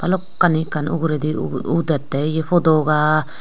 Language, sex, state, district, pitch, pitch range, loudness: Chakma, female, Tripura, Unakoti, 155 Hz, 150-170 Hz, -19 LUFS